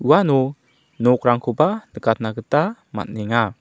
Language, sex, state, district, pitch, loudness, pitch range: Garo, male, Meghalaya, South Garo Hills, 125 Hz, -20 LUFS, 115-150 Hz